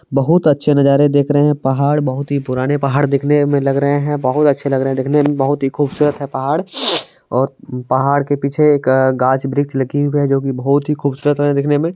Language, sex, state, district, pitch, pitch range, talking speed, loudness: Hindi, male, Bihar, Supaul, 140 Hz, 135-145 Hz, 230 wpm, -15 LUFS